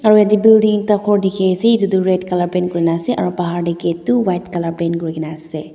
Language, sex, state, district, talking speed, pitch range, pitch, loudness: Nagamese, female, Nagaland, Dimapur, 250 wpm, 170-210 Hz, 180 Hz, -16 LUFS